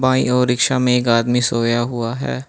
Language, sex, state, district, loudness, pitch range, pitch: Hindi, male, Manipur, Imphal West, -17 LUFS, 120-130 Hz, 125 Hz